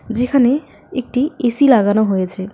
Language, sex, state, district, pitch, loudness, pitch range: Bengali, female, West Bengal, Alipurduar, 245 Hz, -15 LUFS, 205-265 Hz